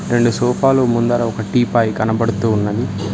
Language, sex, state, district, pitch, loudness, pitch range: Telugu, male, Telangana, Hyderabad, 115 Hz, -16 LUFS, 110-120 Hz